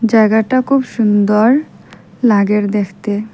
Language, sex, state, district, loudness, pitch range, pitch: Bengali, female, Assam, Hailakandi, -13 LUFS, 205-240 Hz, 215 Hz